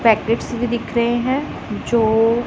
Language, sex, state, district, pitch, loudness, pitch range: Hindi, female, Punjab, Pathankot, 235 Hz, -19 LUFS, 225-240 Hz